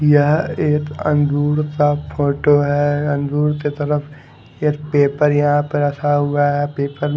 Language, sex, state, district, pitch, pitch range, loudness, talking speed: Hindi, male, Haryana, Charkhi Dadri, 145 Hz, 145-150 Hz, -17 LUFS, 150 wpm